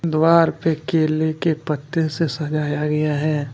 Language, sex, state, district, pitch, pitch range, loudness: Hindi, male, Jharkhand, Deoghar, 155 Hz, 150-165 Hz, -20 LUFS